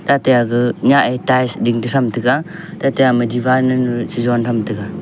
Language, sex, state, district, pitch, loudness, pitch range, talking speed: Wancho, male, Arunachal Pradesh, Longding, 125 Hz, -16 LUFS, 120-130 Hz, 205 wpm